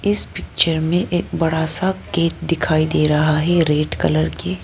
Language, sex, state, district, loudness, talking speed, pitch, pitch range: Hindi, female, Arunachal Pradesh, Lower Dibang Valley, -18 LUFS, 180 wpm, 160 Hz, 150-170 Hz